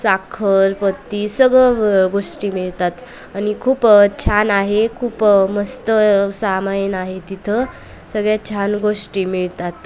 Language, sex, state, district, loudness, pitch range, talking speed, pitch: Marathi, female, Maharashtra, Aurangabad, -16 LUFS, 195-215 Hz, 130 wpm, 205 Hz